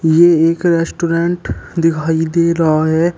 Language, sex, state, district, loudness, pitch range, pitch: Hindi, male, Uttar Pradesh, Shamli, -14 LUFS, 160-170 Hz, 165 Hz